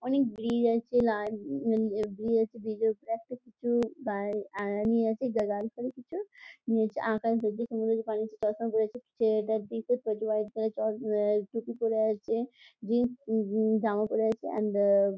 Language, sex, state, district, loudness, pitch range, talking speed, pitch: Bengali, female, West Bengal, Jhargram, -30 LUFS, 215-235 Hz, 180 wpm, 225 Hz